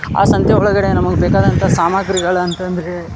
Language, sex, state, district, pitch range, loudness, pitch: Kannada, male, Karnataka, Dharwad, 175-185 Hz, -14 LUFS, 180 Hz